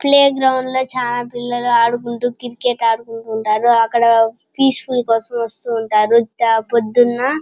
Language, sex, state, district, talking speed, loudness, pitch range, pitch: Telugu, female, Andhra Pradesh, Chittoor, 135 wpm, -16 LUFS, 230-245 Hz, 240 Hz